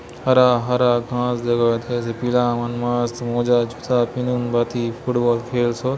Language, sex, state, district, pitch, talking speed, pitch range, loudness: Chhattisgarhi, male, Chhattisgarh, Bastar, 120 Hz, 160 wpm, 120-125 Hz, -20 LUFS